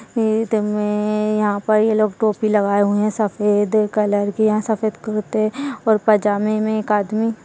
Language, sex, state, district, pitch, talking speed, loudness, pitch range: Hindi, female, Uttarakhand, Tehri Garhwal, 215 Hz, 175 wpm, -18 LUFS, 210-220 Hz